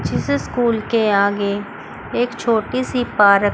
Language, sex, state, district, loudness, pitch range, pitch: Hindi, female, Chandigarh, Chandigarh, -18 LUFS, 200-240 Hz, 215 Hz